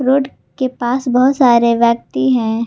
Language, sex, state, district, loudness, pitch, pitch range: Hindi, female, Jharkhand, Garhwa, -14 LUFS, 245 Hz, 235-260 Hz